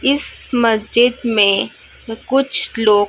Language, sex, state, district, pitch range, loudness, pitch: Hindi, female, Chhattisgarh, Raipur, 215-250 Hz, -16 LUFS, 230 Hz